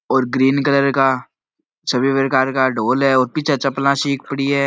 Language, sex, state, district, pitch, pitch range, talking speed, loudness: Marwari, male, Rajasthan, Nagaur, 135 Hz, 130-140 Hz, 195 wpm, -17 LUFS